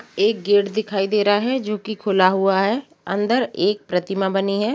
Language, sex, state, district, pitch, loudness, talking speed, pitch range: Hindi, female, Uttar Pradesh, Jalaun, 205 Hz, -20 LUFS, 190 wpm, 195-215 Hz